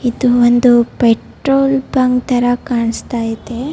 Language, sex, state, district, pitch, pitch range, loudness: Kannada, female, Karnataka, Bellary, 245 Hz, 235-255 Hz, -14 LUFS